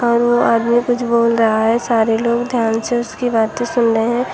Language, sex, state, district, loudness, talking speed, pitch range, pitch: Hindi, female, Uttar Pradesh, Shamli, -16 LUFS, 220 wpm, 225-240 Hz, 235 Hz